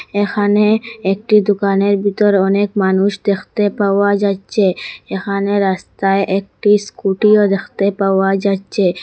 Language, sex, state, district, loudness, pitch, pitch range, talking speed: Bengali, female, Assam, Hailakandi, -15 LUFS, 200 Hz, 195-205 Hz, 105 wpm